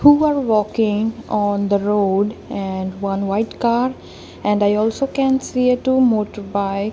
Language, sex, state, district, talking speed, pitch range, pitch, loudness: English, female, Punjab, Kapurthala, 165 wpm, 200-250 Hz, 210 Hz, -19 LUFS